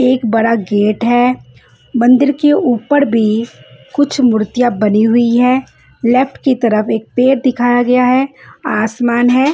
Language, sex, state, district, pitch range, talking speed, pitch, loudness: Hindi, female, Bihar, West Champaran, 220-255 Hz, 150 wpm, 245 Hz, -13 LUFS